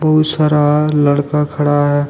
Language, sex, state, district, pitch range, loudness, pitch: Hindi, male, Jharkhand, Deoghar, 145-150 Hz, -13 LUFS, 150 Hz